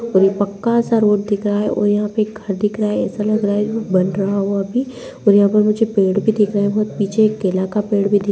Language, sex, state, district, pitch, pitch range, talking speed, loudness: Hindi, female, Bihar, Madhepura, 205 Hz, 200-215 Hz, 295 wpm, -17 LUFS